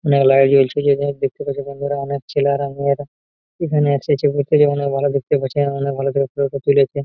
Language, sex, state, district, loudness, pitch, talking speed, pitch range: Bengali, male, West Bengal, Malda, -18 LUFS, 140 Hz, 180 wpm, 140-145 Hz